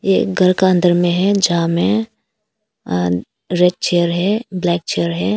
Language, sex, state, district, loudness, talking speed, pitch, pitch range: Hindi, female, Arunachal Pradesh, Papum Pare, -16 LUFS, 155 wpm, 180 Hz, 170-195 Hz